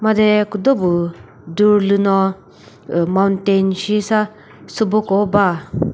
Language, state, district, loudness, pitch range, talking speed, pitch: Chakhesang, Nagaland, Dimapur, -16 LUFS, 190-210 Hz, 120 wpm, 200 Hz